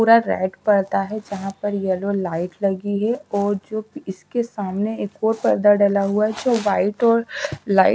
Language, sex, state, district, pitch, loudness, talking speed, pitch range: Hindi, female, Haryana, Rohtak, 205 Hz, -21 LUFS, 195 wpm, 195-220 Hz